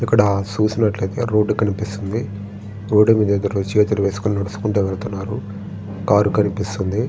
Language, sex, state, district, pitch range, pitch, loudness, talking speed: Telugu, male, Andhra Pradesh, Srikakulam, 100-105 Hz, 105 Hz, -19 LUFS, 120 wpm